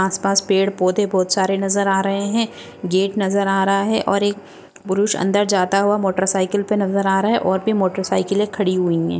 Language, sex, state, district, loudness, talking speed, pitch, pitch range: Hindi, female, Goa, North and South Goa, -18 LUFS, 220 wpm, 195 Hz, 190-205 Hz